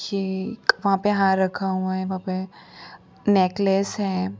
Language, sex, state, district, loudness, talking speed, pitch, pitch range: Hindi, female, Gujarat, Valsad, -23 LUFS, 165 wpm, 190 Hz, 185-200 Hz